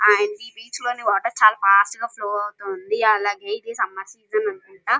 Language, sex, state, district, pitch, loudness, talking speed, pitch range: Telugu, female, Andhra Pradesh, Krishna, 215 Hz, -21 LUFS, 190 wpm, 205-245 Hz